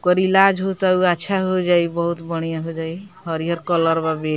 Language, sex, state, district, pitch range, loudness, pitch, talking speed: Bhojpuri, female, Bihar, Muzaffarpur, 165-185 Hz, -19 LUFS, 170 Hz, 205 wpm